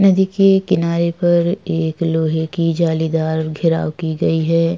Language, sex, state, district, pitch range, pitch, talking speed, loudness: Hindi, female, Bihar, Vaishali, 160-175 Hz, 165 Hz, 150 wpm, -17 LUFS